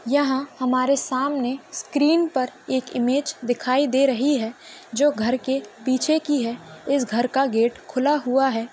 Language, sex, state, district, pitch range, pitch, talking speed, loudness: Hindi, female, Maharashtra, Solapur, 245-285 Hz, 265 Hz, 165 wpm, -22 LUFS